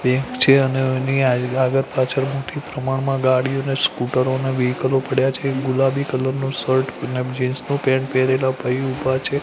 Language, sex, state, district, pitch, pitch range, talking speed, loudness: Gujarati, male, Gujarat, Gandhinagar, 130 Hz, 130-135 Hz, 155 wpm, -19 LUFS